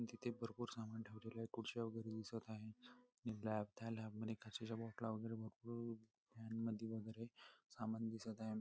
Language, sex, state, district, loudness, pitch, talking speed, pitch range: Marathi, male, Maharashtra, Nagpur, -50 LUFS, 115 Hz, 160 wpm, 110-115 Hz